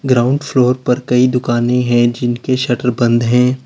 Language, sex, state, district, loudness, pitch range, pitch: Hindi, male, Uttar Pradesh, Lalitpur, -14 LUFS, 120-130 Hz, 125 Hz